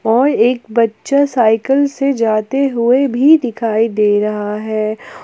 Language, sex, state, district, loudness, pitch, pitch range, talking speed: Hindi, female, Jharkhand, Palamu, -14 LUFS, 235 Hz, 220-275 Hz, 135 wpm